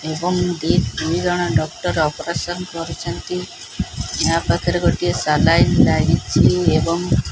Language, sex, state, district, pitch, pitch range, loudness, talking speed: Odia, male, Odisha, Khordha, 170 Hz, 160-180 Hz, -18 LUFS, 105 wpm